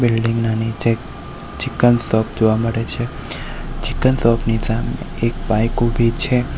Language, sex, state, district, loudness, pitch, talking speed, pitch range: Gujarati, male, Gujarat, Valsad, -19 LUFS, 115 Hz, 145 wpm, 115-120 Hz